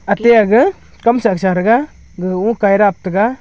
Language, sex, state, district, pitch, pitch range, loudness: Wancho, male, Arunachal Pradesh, Longding, 210 Hz, 195-235 Hz, -13 LUFS